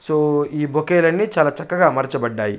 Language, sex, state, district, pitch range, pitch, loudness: Telugu, male, Andhra Pradesh, Chittoor, 140-165 Hz, 150 Hz, -18 LUFS